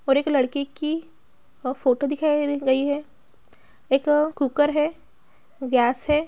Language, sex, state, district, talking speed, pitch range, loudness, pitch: Hindi, female, Bihar, Gaya, 135 wpm, 270-300 Hz, -23 LUFS, 285 Hz